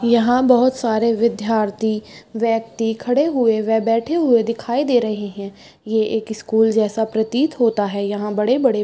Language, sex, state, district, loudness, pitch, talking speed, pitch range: Hindi, female, Bihar, Madhepura, -18 LUFS, 225 Hz, 165 wpm, 220-240 Hz